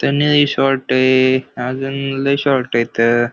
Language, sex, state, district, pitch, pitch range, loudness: Marathi, male, Maharashtra, Pune, 130 Hz, 125-140 Hz, -16 LUFS